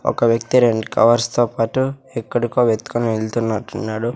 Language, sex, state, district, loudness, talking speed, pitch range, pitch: Telugu, male, Andhra Pradesh, Sri Satya Sai, -18 LUFS, 130 wpm, 110-120 Hz, 115 Hz